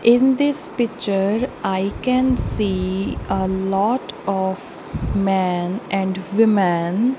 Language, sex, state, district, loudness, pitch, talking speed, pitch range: English, female, Punjab, Kapurthala, -20 LUFS, 195 Hz, 100 wpm, 190-240 Hz